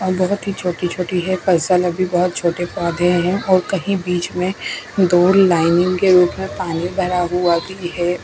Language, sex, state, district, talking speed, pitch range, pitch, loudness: Hindi, female, Punjab, Fazilka, 160 wpm, 175-185 Hz, 180 Hz, -17 LUFS